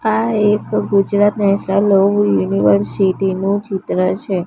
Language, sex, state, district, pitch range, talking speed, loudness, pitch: Gujarati, female, Gujarat, Gandhinagar, 185-205 Hz, 105 wpm, -15 LUFS, 195 Hz